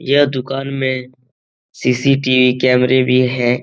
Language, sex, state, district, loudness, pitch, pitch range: Hindi, male, Bihar, Lakhisarai, -15 LUFS, 130 Hz, 125-135 Hz